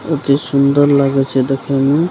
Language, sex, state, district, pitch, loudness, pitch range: Maithili, male, Bihar, Begusarai, 140 Hz, -14 LUFS, 135-145 Hz